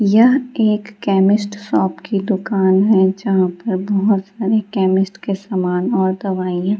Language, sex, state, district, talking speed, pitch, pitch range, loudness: Hindi, female, Bihar, Gaya, 150 wpm, 195 Hz, 190-210 Hz, -17 LUFS